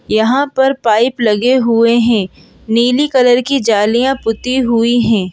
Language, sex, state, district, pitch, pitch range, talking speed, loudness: Hindi, female, Madhya Pradesh, Bhopal, 235 Hz, 225-260 Hz, 145 wpm, -12 LUFS